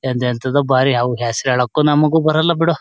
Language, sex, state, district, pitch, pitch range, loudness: Kannada, male, Karnataka, Shimoga, 135 Hz, 125-155 Hz, -16 LUFS